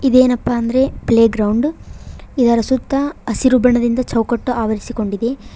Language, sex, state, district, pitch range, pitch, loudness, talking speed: Kannada, female, Karnataka, Koppal, 230-255 Hz, 240 Hz, -16 LUFS, 110 wpm